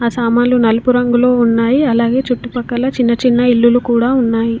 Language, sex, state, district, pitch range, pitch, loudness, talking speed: Telugu, female, Telangana, Komaram Bheem, 235-250 Hz, 240 Hz, -13 LUFS, 155 wpm